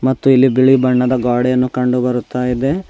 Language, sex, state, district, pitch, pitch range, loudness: Kannada, male, Karnataka, Bidar, 125 Hz, 125-130 Hz, -14 LUFS